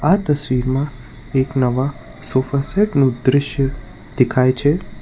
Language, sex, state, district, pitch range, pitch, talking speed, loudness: Gujarati, male, Gujarat, Valsad, 130-140 Hz, 130 Hz, 110 wpm, -18 LUFS